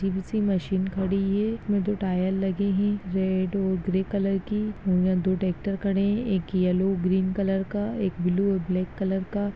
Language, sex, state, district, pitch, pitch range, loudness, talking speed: Hindi, female, Bihar, Begusarai, 195 Hz, 185-200 Hz, -26 LUFS, 195 wpm